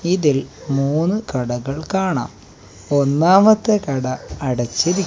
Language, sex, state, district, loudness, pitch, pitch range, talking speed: Malayalam, male, Kerala, Kasaragod, -18 LUFS, 145 Hz, 135-185 Hz, 85 wpm